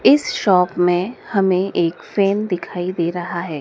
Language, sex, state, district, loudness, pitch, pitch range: Hindi, male, Madhya Pradesh, Dhar, -19 LUFS, 180 Hz, 175-195 Hz